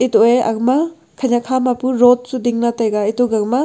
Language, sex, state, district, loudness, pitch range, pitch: Wancho, female, Arunachal Pradesh, Longding, -16 LUFS, 230-255 Hz, 245 Hz